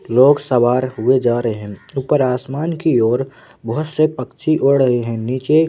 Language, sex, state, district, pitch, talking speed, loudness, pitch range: Hindi, male, Madhya Pradesh, Bhopal, 130 Hz, 180 wpm, -17 LUFS, 120-145 Hz